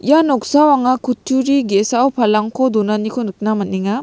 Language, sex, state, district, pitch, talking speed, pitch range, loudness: Garo, female, Meghalaya, West Garo Hills, 240 Hz, 135 wpm, 215-265 Hz, -15 LUFS